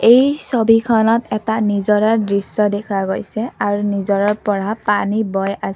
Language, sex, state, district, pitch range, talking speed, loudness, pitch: Assamese, female, Assam, Kamrup Metropolitan, 200-225 Hz, 135 wpm, -17 LUFS, 210 Hz